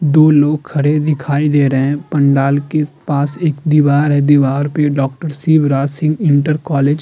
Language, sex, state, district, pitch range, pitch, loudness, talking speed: Hindi, male, Uttar Pradesh, Muzaffarnagar, 140-155 Hz, 145 Hz, -14 LUFS, 180 wpm